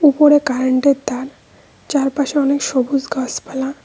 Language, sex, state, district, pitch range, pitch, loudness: Bengali, female, West Bengal, Cooch Behar, 260-285 Hz, 275 Hz, -17 LUFS